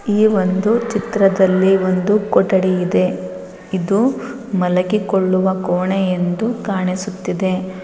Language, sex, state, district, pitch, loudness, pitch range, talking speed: Kannada, female, Karnataka, Raichur, 190 Hz, -17 LUFS, 185-205 Hz, 85 wpm